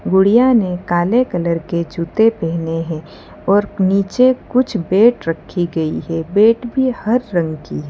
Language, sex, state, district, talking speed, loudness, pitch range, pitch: Hindi, female, Gujarat, Valsad, 165 wpm, -16 LUFS, 165-225 Hz, 190 Hz